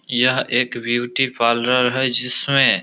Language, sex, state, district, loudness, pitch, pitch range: Hindi, male, Bihar, Samastipur, -17 LUFS, 125 Hz, 120-130 Hz